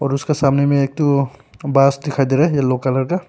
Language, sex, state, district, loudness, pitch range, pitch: Hindi, male, Arunachal Pradesh, Papum Pare, -17 LUFS, 135-145 Hz, 140 Hz